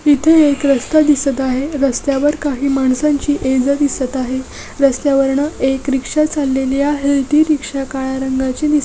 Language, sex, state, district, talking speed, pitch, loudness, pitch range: Marathi, female, Maharashtra, Dhule, 150 wpm, 275 Hz, -15 LUFS, 265-295 Hz